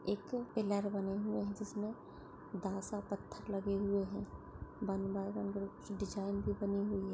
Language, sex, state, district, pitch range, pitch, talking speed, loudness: Hindi, female, Maharashtra, Solapur, 195-205 Hz, 200 Hz, 160 wpm, -40 LUFS